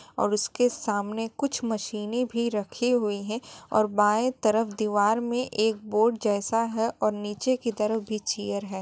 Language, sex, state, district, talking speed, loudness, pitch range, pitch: Hindi, female, Bihar, Kishanganj, 170 wpm, -26 LUFS, 210-235 Hz, 220 Hz